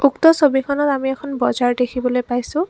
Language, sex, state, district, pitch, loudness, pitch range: Assamese, female, Assam, Kamrup Metropolitan, 270 Hz, -18 LUFS, 250-290 Hz